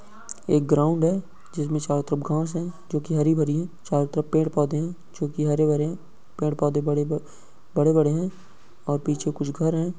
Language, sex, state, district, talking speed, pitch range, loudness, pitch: Hindi, male, Uttar Pradesh, Ghazipur, 200 wpm, 150-165 Hz, -24 LUFS, 155 Hz